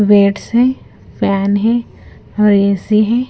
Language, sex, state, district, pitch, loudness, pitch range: Hindi, female, Punjab, Kapurthala, 210 Hz, -14 LUFS, 200-230 Hz